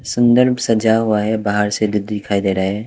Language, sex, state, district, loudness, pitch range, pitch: Hindi, male, Maharashtra, Mumbai Suburban, -16 LUFS, 105-115 Hz, 105 Hz